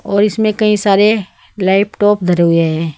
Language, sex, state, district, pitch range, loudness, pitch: Hindi, female, Uttar Pradesh, Saharanpur, 175-210 Hz, -13 LUFS, 200 Hz